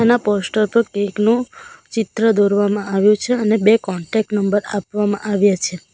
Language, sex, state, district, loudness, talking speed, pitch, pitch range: Gujarati, female, Gujarat, Valsad, -17 LUFS, 150 wpm, 205 Hz, 200-220 Hz